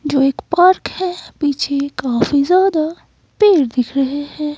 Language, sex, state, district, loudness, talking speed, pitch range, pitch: Hindi, female, Himachal Pradesh, Shimla, -16 LUFS, 145 wpm, 275-355 Hz, 295 Hz